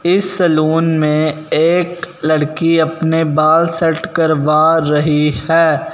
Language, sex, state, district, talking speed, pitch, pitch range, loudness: Hindi, male, Punjab, Fazilka, 110 wpm, 160 Hz, 155-165 Hz, -14 LUFS